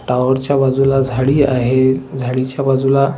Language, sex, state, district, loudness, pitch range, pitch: Marathi, male, Maharashtra, Washim, -15 LUFS, 130-135 Hz, 135 Hz